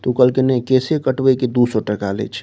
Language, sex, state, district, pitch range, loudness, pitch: Maithili, male, Bihar, Saharsa, 120-130 Hz, -17 LUFS, 125 Hz